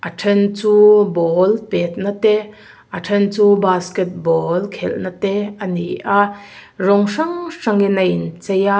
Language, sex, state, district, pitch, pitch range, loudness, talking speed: Mizo, female, Mizoram, Aizawl, 200 Hz, 185-205 Hz, -16 LUFS, 150 wpm